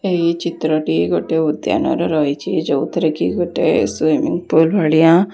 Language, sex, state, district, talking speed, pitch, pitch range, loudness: Odia, female, Odisha, Khordha, 145 wpm, 160 Hz, 155-170 Hz, -16 LUFS